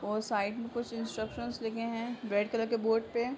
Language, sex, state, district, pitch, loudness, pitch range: Hindi, female, Uttar Pradesh, Hamirpur, 230 Hz, -34 LUFS, 220-235 Hz